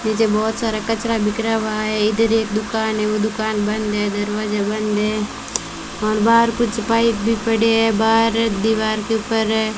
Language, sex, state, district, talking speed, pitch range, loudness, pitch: Hindi, female, Rajasthan, Bikaner, 185 wpm, 215-225 Hz, -19 LUFS, 220 Hz